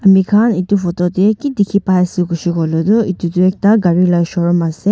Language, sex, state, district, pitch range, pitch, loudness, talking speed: Nagamese, female, Nagaland, Dimapur, 175-200 Hz, 185 Hz, -14 LUFS, 220 wpm